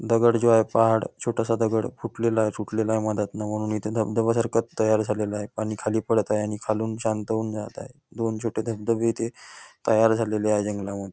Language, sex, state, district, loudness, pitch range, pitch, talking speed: Marathi, male, Maharashtra, Nagpur, -25 LUFS, 105-115 Hz, 110 Hz, 195 wpm